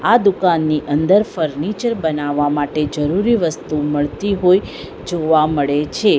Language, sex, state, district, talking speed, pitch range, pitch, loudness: Gujarati, female, Gujarat, Valsad, 125 wpm, 150-195 Hz, 155 Hz, -17 LUFS